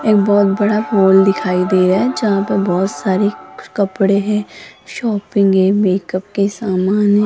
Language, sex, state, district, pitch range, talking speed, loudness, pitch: Hindi, female, Rajasthan, Jaipur, 190-210 Hz, 165 wpm, -15 LUFS, 200 Hz